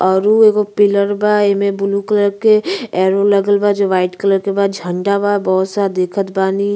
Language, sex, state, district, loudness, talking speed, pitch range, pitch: Bhojpuri, female, Uttar Pradesh, Ghazipur, -14 LUFS, 195 wpm, 195-205 Hz, 200 Hz